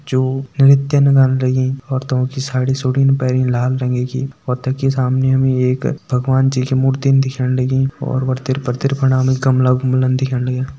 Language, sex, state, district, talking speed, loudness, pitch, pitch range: Garhwali, male, Uttarakhand, Tehri Garhwal, 150 wpm, -16 LUFS, 130 Hz, 130-135 Hz